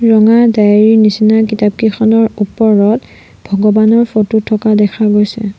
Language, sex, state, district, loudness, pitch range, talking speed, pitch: Assamese, female, Assam, Sonitpur, -10 LUFS, 210-220 Hz, 120 wpm, 215 Hz